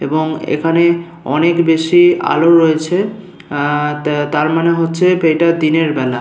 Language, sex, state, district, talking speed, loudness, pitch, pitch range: Bengali, male, West Bengal, Paschim Medinipur, 135 wpm, -13 LUFS, 165 Hz, 150-170 Hz